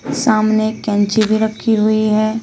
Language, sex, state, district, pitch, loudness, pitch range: Hindi, female, Uttar Pradesh, Shamli, 215 Hz, -15 LUFS, 215-220 Hz